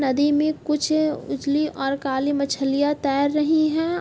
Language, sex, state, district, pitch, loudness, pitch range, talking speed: Hindi, female, Uttar Pradesh, Jalaun, 290 Hz, -22 LUFS, 275-305 Hz, 150 wpm